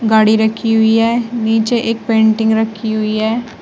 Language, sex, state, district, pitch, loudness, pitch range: Hindi, female, Uttar Pradesh, Shamli, 220 Hz, -14 LUFS, 220-230 Hz